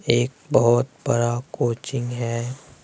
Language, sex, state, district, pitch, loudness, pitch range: Hindi, male, Bihar, West Champaran, 120 Hz, -23 LUFS, 120-135 Hz